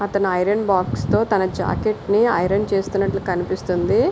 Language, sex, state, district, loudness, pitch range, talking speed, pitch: Telugu, female, Andhra Pradesh, Visakhapatnam, -20 LUFS, 185-205 Hz, 145 wpm, 195 Hz